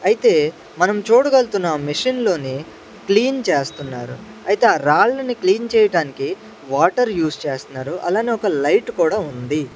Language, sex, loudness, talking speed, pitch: Telugu, male, -18 LUFS, 125 wpm, 190 Hz